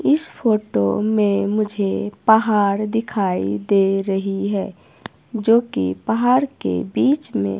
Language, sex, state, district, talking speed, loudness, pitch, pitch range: Hindi, female, Himachal Pradesh, Shimla, 120 wpm, -19 LUFS, 205 Hz, 195-225 Hz